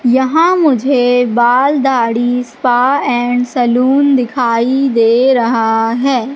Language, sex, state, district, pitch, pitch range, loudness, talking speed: Hindi, female, Madhya Pradesh, Katni, 245 Hz, 240-270 Hz, -12 LUFS, 105 wpm